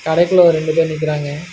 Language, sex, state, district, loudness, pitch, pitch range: Tamil, male, Karnataka, Bangalore, -15 LUFS, 160 Hz, 155-170 Hz